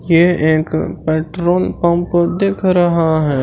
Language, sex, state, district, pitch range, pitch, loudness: Hindi, male, Chhattisgarh, Raipur, 160-175 Hz, 170 Hz, -15 LUFS